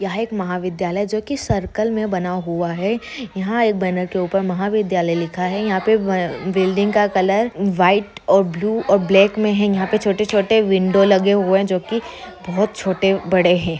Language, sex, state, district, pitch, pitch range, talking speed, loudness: Hindi, female, Bihar, Bhagalpur, 195 Hz, 185-210 Hz, 180 wpm, -18 LUFS